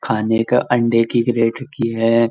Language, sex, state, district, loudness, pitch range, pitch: Hindi, male, Uttar Pradesh, Jyotiba Phule Nagar, -17 LUFS, 115-120 Hz, 115 Hz